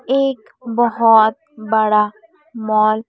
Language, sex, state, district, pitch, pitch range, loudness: Hindi, female, Chhattisgarh, Raipur, 220 Hz, 215-250 Hz, -16 LUFS